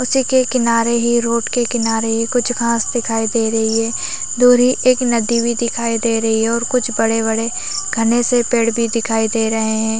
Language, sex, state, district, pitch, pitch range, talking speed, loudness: Hindi, female, Chhattisgarh, Raigarh, 235 Hz, 225-240 Hz, 205 wpm, -16 LUFS